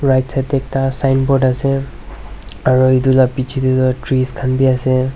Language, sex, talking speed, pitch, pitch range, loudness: Nagamese, male, 185 wpm, 130 Hz, 130-135 Hz, -15 LUFS